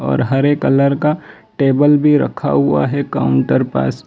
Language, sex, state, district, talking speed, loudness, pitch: Hindi, male, Gujarat, Valsad, 175 wpm, -14 LUFS, 135 Hz